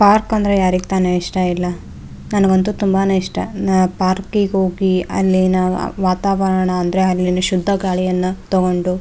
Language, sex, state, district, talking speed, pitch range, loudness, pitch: Kannada, female, Karnataka, Raichur, 135 wpm, 185-195 Hz, -17 LUFS, 185 Hz